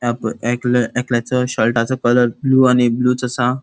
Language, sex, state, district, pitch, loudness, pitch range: Konkani, male, Goa, North and South Goa, 125 Hz, -17 LUFS, 120-125 Hz